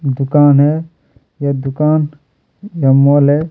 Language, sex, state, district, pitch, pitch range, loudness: Hindi, male, Chhattisgarh, Kabirdham, 145 Hz, 140-150 Hz, -13 LUFS